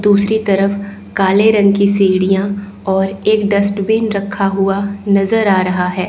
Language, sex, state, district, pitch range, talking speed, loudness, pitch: Hindi, female, Chandigarh, Chandigarh, 195-205 Hz, 150 wpm, -14 LUFS, 200 Hz